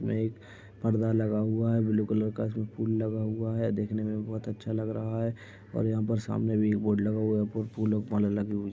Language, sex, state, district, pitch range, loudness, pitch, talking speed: Hindi, male, Uttarakhand, Uttarkashi, 105-110 Hz, -30 LUFS, 110 Hz, 270 wpm